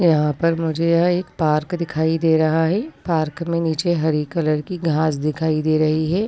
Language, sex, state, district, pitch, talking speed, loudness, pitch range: Hindi, female, Uttar Pradesh, Varanasi, 160 Hz, 200 wpm, -20 LUFS, 155-170 Hz